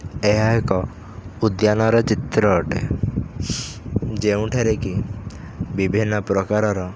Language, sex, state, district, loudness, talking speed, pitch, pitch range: Odia, male, Odisha, Khordha, -21 LUFS, 85 wpm, 105 Hz, 95-110 Hz